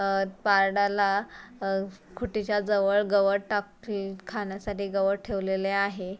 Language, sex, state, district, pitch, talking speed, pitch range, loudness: Marathi, female, Maharashtra, Pune, 200 Hz, 105 wpm, 195-205 Hz, -27 LUFS